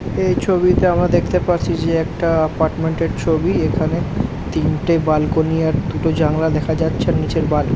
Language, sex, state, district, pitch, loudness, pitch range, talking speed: Bengali, male, West Bengal, Jhargram, 160 Hz, -17 LUFS, 155-165 Hz, 160 wpm